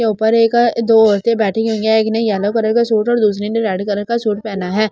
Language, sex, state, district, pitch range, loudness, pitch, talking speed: Hindi, female, Delhi, New Delhi, 210-225 Hz, -15 LUFS, 220 Hz, 295 wpm